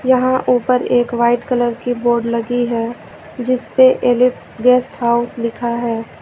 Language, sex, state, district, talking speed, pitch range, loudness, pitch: Hindi, female, Uttar Pradesh, Lucknow, 155 wpm, 235-250 Hz, -16 LUFS, 240 Hz